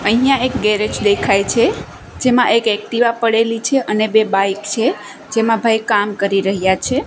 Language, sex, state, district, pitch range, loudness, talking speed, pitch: Gujarati, female, Gujarat, Gandhinagar, 205-235 Hz, -15 LUFS, 170 wpm, 220 Hz